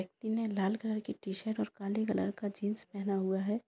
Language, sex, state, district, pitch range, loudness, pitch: Hindi, female, Bihar, Saran, 195-220 Hz, -35 LUFS, 205 Hz